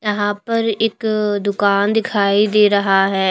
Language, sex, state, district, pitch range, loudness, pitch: Hindi, female, Chhattisgarh, Raipur, 200-220 Hz, -16 LUFS, 205 Hz